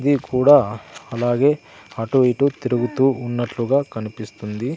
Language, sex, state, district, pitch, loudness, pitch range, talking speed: Telugu, male, Andhra Pradesh, Sri Satya Sai, 125 Hz, -19 LUFS, 115-135 Hz, 100 wpm